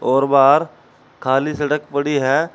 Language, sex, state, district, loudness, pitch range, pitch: Hindi, male, Uttar Pradesh, Saharanpur, -17 LUFS, 135-150 Hz, 140 Hz